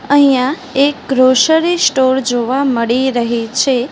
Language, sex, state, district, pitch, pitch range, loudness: Gujarati, female, Gujarat, Gandhinagar, 265 Hz, 250-280 Hz, -13 LUFS